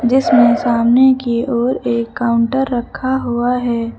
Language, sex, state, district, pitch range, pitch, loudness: Hindi, male, Uttar Pradesh, Lucknow, 235-255 Hz, 240 Hz, -15 LUFS